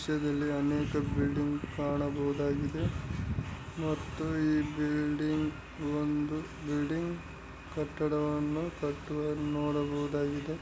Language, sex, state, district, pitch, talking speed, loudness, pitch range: Kannada, male, Karnataka, Raichur, 150 Hz, 75 wpm, -33 LUFS, 145-150 Hz